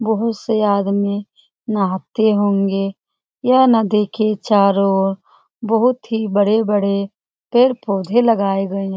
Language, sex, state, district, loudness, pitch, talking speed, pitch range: Hindi, female, Bihar, Jamui, -17 LUFS, 210 Hz, 115 wpm, 195-225 Hz